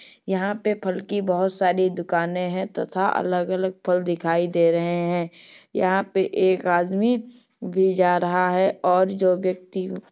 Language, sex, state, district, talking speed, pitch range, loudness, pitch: Hindi, female, Uttar Pradesh, Muzaffarnagar, 160 wpm, 180-195 Hz, -22 LUFS, 185 Hz